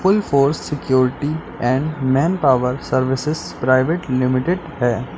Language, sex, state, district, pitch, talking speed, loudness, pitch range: Hindi, male, Uttar Pradesh, Lalitpur, 135 Hz, 95 wpm, -18 LUFS, 130-155 Hz